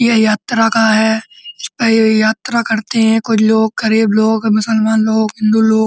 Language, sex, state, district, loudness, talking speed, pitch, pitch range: Hindi, male, Uttar Pradesh, Muzaffarnagar, -13 LUFS, 165 wpm, 220 Hz, 220-225 Hz